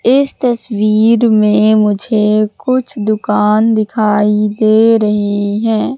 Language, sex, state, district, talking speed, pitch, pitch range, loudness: Hindi, female, Madhya Pradesh, Katni, 100 wpm, 215 Hz, 210-230 Hz, -12 LUFS